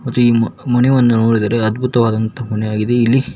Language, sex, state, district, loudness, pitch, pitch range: Kannada, male, Karnataka, Koppal, -15 LUFS, 120 Hz, 110-125 Hz